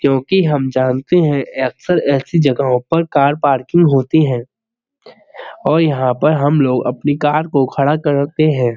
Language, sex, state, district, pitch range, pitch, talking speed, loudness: Hindi, male, Uttar Pradesh, Budaun, 135-155 Hz, 145 Hz, 165 wpm, -15 LUFS